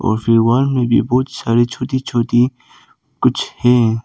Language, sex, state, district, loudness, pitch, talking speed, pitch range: Hindi, male, Arunachal Pradesh, Papum Pare, -16 LUFS, 120 Hz, 165 wpm, 115-125 Hz